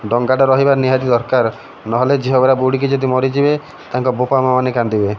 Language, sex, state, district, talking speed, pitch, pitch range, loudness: Odia, male, Odisha, Malkangiri, 175 wpm, 130 Hz, 120-135 Hz, -15 LUFS